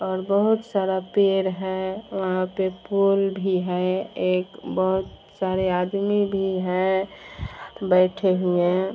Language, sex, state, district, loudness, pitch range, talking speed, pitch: Hindi, female, Bihar, Vaishali, -23 LUFS, 185-195 Hz, 125 wpm, 190 Hz